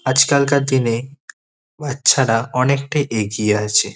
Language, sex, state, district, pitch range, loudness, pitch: Bengali, male, West Bengal, Kolkata, 105-140 Hz, -17 LUFS, 130 Hz